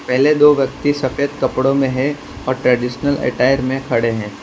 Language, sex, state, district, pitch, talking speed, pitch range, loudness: Hindi, male, Gujarat, Valsad, 135 Hz, 175 wpm, 125-140 Hz, -16 LUFS